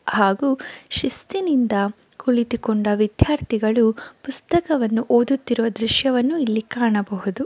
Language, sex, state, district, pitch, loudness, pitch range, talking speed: Kannada, female, Karnataka, Mysore, 235 Hz, -20 LUFS, 220-270 Hz, 70 wpm